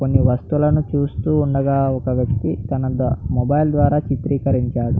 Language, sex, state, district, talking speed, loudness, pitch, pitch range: Telugu, male, Andhra Pradesh, Anantapur, 95 wpm, -19 LUFS, 135 Hz, 125-145 Hz